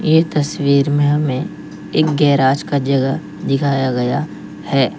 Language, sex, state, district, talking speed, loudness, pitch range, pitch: Hindi, male, Uttar Pradesh, Lalitpur, 130 wpm, -16 LUFS, 135-150 Hz, 140 Hz